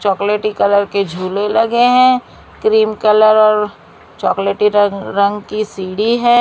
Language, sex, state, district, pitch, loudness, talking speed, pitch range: Hindi, female, Maharashtra, Mumbai Suburban, 210 Hz, -14 LUFS, 130 wpm, 200-220 Hz